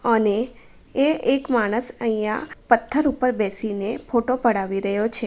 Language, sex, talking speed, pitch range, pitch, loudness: Gujarati, female, 125 wpm, 215-250 Hz, 230 Hz, -22 LUFS